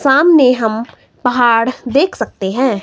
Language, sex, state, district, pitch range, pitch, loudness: Hindi, female, Himachal Pradesh, Shimla, 230-270 Hz, 250 Hz, -13 LUFS